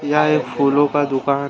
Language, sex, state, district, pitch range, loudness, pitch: Hindi, male, Jharkhand, Deoghar, 140-150 Hz, -17 LUFS, 145 Hz